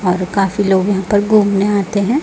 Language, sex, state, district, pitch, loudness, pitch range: Hindi, male, Chhattisgarh, Raipur, 200 Hz, -14 LUFS, 190-205 Hz